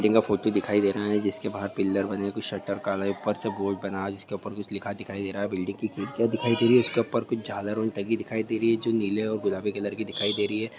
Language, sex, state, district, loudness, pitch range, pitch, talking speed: Hindi, male, Bihar, Madhepura, -27 LUFS, 100-110 Hz, 105 Hz, 305 wpm